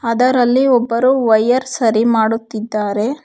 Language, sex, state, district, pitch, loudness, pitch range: Kannada, female, Karnataka, Bangalore, 230 Hz, -15 LUFS, 220-250 Hz